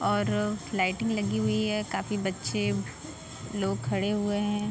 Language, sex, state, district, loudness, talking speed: Hindi, female, Uttar Pradesh, Ghazipur, -29 LUFS, 140 wpm